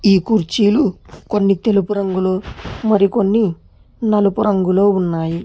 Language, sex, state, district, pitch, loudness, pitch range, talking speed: Telugu, male, Telangana, Hyderabad, 200 Hz, -16 LUFS, 185-215 Hz, 100 wpm